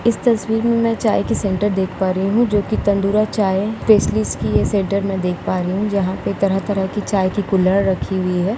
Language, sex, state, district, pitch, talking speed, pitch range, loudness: Hindi, female, Uttar Pradesh, Jalaun, 200 Hz, 230 wpm, 190-215 Hz, -18 LUFS